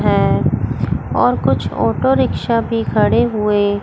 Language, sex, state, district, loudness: Hindi, female, Chandigarh, Chandigarh, -16 LUFS